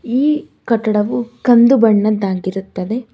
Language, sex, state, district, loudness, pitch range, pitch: Kannada, female, Karnataka, Bangalore, -15 LUFS, 210-245 Hz, 225 Hz